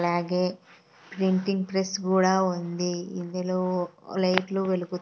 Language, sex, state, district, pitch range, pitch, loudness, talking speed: Telugu, female, Andhra Pradesh, Sri Satya Sai, 180-190 Hz, 185 Hz, -27 LUFS, 95 wpm